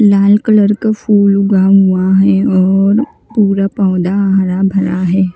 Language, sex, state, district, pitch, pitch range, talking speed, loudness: Hindi, female, Maharashtra, Mumbai Suburban, 195 Hz, 190-205 Hz, 145 wpm, -11 LUFS